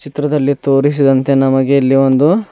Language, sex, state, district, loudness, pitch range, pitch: Kannada, male, Karnataka, Bidar, -12 LUFS, 135-145 Hz, 140 Hz